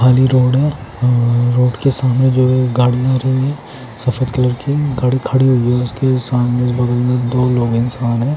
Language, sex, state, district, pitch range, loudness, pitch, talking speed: Hindi, male, Punjab, Fazilka, 125-130 Hz, -15 LUFS, 125 Hz, 195 wpm